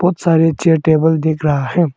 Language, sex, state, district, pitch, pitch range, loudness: Hindi, male, Arunachal Pradesh, Longding, 160 Hz, 155-165 Hz, -14 LUFS